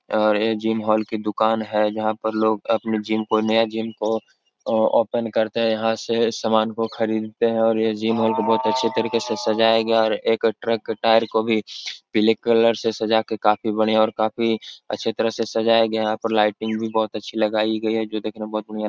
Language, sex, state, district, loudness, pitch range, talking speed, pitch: Hindi, male, Uttar Pradesh, Etah, -21 LUFS, 110-115 Hz, 225 wpm, 110 Hz